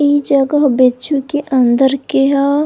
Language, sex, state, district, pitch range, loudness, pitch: Bhojpuri, female, Uttar Pradesh, Varanasi, 265-290 Hz, -13 LUFS, 275 Hz